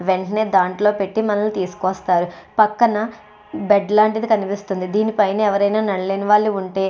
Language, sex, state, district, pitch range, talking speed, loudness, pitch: Telugu, female, Andhra Pradesh, Chittoor, 190-215 Hz, 120 wpm, -18 LUFS, 205 Hz